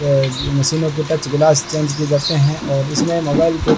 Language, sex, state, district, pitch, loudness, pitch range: Hindi, male, Rajasthan, Bikaner, 150 Hz, -17 LUFS, 140-155 Hz